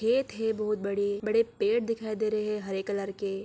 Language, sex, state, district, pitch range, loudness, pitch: Hindi, female, Bihar, Araria, 200-225 Hz, -29 LUFS, 215 Hz